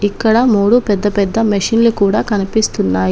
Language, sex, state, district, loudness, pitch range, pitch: Telugu, female, Telangana, Komaram Bheem, -13 LUFS, 200-225 Hz, 210 Hz